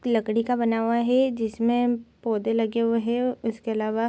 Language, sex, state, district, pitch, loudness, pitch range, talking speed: Hindi, female, Bihar, Sitamarhi, 230 Hz, -24 LUFS, 225-240 Hz, 190 wpm